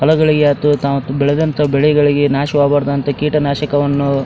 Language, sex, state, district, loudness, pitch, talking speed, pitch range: Kannada, male, Karnataka, Dharwad, -14 LUFS, 145 Hz, 100 wpm, 140-150 Hz